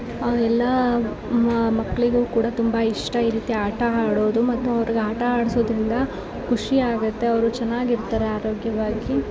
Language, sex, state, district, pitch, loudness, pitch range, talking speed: Kannada, female, Karnataka, Shimoga, 230 Hz, -22 LUFS, 225-240 Hz, 110 wpm